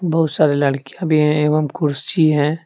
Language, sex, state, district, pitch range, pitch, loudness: Hindi, male, Jharkhand, Deoghar, 145-160 Hz, 150 Hz, -17 LUFS